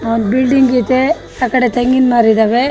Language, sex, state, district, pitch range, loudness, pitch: Kannada, female, Karnataka, Shimoga, 230-260 Hz, -12 LUFS, 250 Hz